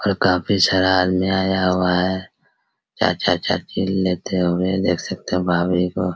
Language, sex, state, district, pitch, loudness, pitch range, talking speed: Hindi, male, Bihar, Araria, 90 Hz, -19 LUFS, 90-95 Hz, 145 wpm